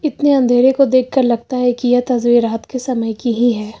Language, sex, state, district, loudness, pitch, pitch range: Hindi, female, Uttar Pradesh, Lucknow, -15 LUFS, 245 Hz, 235-260 Hz